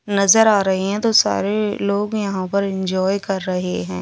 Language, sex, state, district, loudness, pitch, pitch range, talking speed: Hindi, female, Delhi, New Delhi, -18 LUFS, 200 Hz, 190-205 Hz, 195 wpm